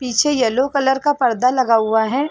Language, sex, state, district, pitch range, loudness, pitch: Hindi, female, Uttar Pradesh, Varanasi, 235-275 Hz, -17 LUFS, 260 Hz